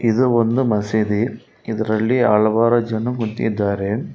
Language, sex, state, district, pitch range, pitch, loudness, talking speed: Kannada, male, Karnataka, Bangalore, 110-120 Hz, 110 Hz, -18 LUFS, 100 wpm